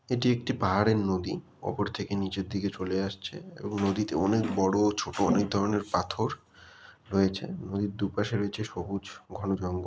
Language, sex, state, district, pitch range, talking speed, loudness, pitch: Bengali, male, West Bengal, Jalpaiguri, 95-105 Hz, 160 wpm, -29 LUFS, 100 Hz